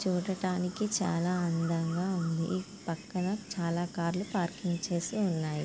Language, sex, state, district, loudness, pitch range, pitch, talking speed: Telugu, female, Andhra Pradesh, Guntur, -32 LUFS, 170-190 Hz, 180 Hz, 140 wpm